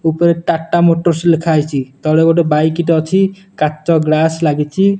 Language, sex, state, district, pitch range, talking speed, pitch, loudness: Odia, male, Odisha, Nuapada, 155-170 Hz, 145 wpm, 165 Hz, -14 LUFS